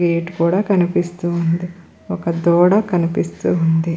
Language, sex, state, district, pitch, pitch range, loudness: Telugu, female, Andhra Pradesh, Krishna, 175 Hz, 170-175 Hz, -17 LUFS